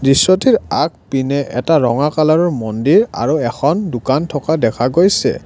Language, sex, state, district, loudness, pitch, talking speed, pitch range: Assamese, male, Assam, Kamrup Metropolitan, -15 LUFS, 145 Hz, 130 wpm, 125-165 Hz